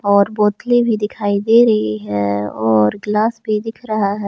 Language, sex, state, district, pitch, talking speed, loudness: Hindi, male, Jharkhand, Palamu, 210 Hz, 180 wpm, -16 LUFS